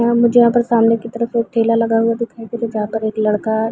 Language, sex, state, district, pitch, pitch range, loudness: Hindi, female, Chhattisgarh, Bilaspur, 230 Hz, 220-235 Hz, -16 LUFS